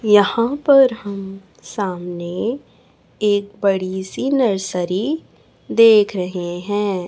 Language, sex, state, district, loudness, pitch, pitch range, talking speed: Hindi, female, Chhattisgarh, Raipur, -18 LUFS, 200 Hz, 185-230 Hz, 95 wpm